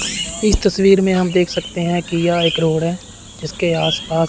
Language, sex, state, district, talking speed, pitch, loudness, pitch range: Hindi, male, Chandigarh, Chandigarh, 210 wpm, 175 Hz, -17 LUFS, 165-185 Hz